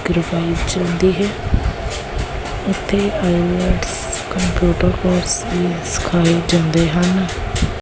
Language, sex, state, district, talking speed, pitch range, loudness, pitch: Punjabi, female, Punjab, Kapurthala, 75 wpm, 170-185 Hz, -18 LUFS, 175 Hz